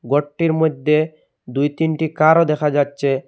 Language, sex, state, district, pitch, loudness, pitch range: Bengali, male, Assam, Hailakandi, 150 Hz, -18 LUFS, 145-160 Hz